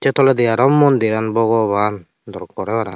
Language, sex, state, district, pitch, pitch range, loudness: Chakma, male, Tripura, Unakoti, 115 Hz, 110-135 Hz, -16 LUFS